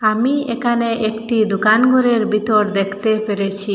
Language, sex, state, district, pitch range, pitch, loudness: Bengali, female, Assam, Hailakandi, 210-235 Hz, 220 Hz, -16 LUFS